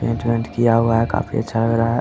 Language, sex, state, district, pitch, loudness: Hindi, male, Bihar, Samastipur, 115 Hz, -19 LUFS